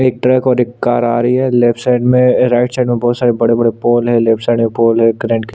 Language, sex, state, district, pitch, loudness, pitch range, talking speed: Hindi, male, Chhattisgarh, Sukma, 120 Hz, -12 LUFS, 115-125 Hz, 260 wpm